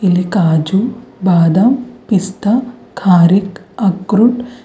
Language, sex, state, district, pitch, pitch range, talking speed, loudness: Kannada, female, Karnataka, Bidar, 200 Hz, 185-235 Hz, 75 wpm, -13 LUFS